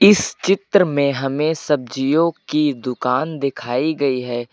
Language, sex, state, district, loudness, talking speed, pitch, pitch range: Hindi, male, Uttar Pradesh, Lucknow, -19 LUFS, 135 wpm, 140 Hz, 125-160 Hz